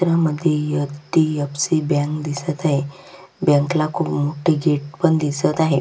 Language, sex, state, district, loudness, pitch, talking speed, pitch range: Marathi, female, Maharashtra, Sindhudurg, -20 LUFS, 150 Hz, 125 wpm, 145-165 Hz